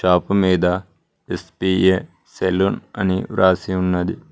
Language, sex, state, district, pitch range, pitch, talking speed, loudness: Telugu, male, Telangana, Mahabubabad, 90-95 Hz, 95 Hz, 95 wpm, -19 LUFS